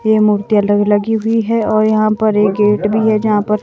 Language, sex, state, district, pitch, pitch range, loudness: Hindi, female, Himachal Pradesh, Shimla, 215 Hz, 210-220 Hz, -13 LUFS